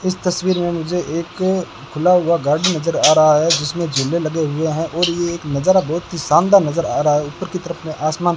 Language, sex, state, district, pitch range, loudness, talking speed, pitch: Hindi, male, Rajasthan, Bikaner, 155-180 Hz, -17 LUFS, 245 wpm, 170 Hz